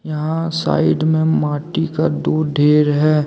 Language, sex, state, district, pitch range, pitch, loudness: Hindi, male, Jharkhand, Deoghar, 150-160 Hz, 155 Hz, -17 LUFS